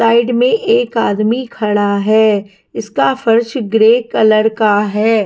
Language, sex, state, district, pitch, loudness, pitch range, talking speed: Hindi, female, Punjab, Kapurthala, 220 Hz, -13 LUFS, 210-240 Hz, 135 wpm